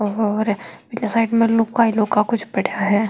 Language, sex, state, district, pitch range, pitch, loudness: Marwari, female, Rajasthan, Nagaur, 210-230 Hz, 220 Hz, -19 LUFS